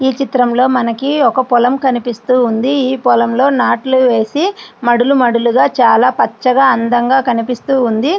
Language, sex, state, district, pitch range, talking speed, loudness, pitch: Telugu, female, Andhra Pradesh, Srikakulam, 240-265 Hz, 130 wpm, -12 LUFS, 255 Hz